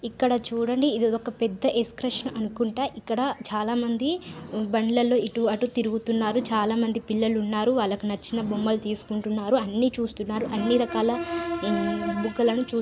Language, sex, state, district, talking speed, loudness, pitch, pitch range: Telugu, female, Telangana, Nalgonda, 125 wpm, -26 LUFS, 230 Hz, 215-245 Hz